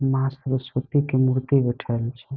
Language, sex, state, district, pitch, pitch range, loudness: Maithili, male, Bihar, Saharsa, 130 Hz, 130-135 Hz, -23 LUFS